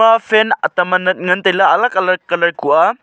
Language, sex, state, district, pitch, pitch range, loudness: Wancho, male, Arunachal Pradesh, Longding, 185 Hz, 180-220 Hz, -14 LUFS